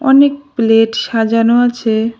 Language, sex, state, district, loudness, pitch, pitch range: Bengali, female, West Bengal, Cooch Behar, -13 LUFS, 230 Hz, 225-265 Hz